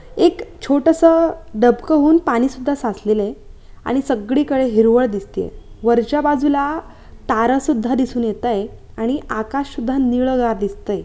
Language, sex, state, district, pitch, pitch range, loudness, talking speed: Marathi, female, Maharashtra, Aurangabad, 255 Hz, 230-290 Hz, -17 LUFS, 125 wpm